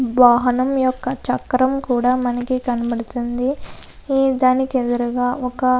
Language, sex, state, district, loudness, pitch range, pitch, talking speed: Telugu, female, Andhra Pradesh, Anantapur, -19 LUFS, 245-260 Hz, 255 Hz, 115 wpm